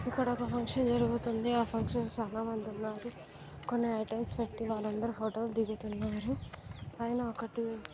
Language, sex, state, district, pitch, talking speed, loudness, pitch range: Telugu, female, Andhra Pradesh, Srikakulam, 230 Hz, 120 wpm, -35 LUFS, 220-235 Hz